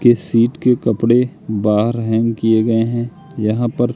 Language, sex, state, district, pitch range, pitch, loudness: Hindi, male, Madhya Pradesh, Katni, 110-120 Hz, 115 Hz, -16 LUFS